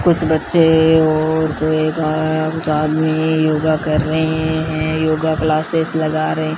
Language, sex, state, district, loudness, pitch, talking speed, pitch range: Hindi, female, Rajasthan, Bikaner, -16 LUFS, 155 Hz, 135 wpm, 155-160 Hz